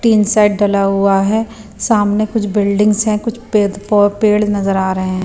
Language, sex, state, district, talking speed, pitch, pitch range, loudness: Hindi, female, Bihar, Patna, 195 wpm, 205 Hz, 200-215 Hz, -14 LUFS